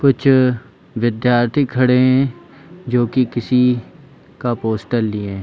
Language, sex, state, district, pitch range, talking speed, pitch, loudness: Hindi, female, Chhattisgarh, Bilaspur, 115-130 Hz, 120 wpm, 125 Hz, -17 LUFS